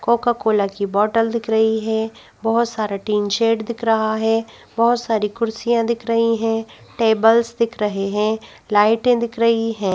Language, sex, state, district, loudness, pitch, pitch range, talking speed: Hindi, female, Madhya Pradesh, Bhopal, -19 LUFS, 225 Hz, 220-230 Hz, 165 wpm